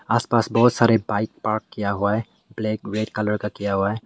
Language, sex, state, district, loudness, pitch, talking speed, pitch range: Hindi, male, Meghalaya, West Garo Hills, -22 LUFS, 110 Hz, 235 wpm, 105-115 Hz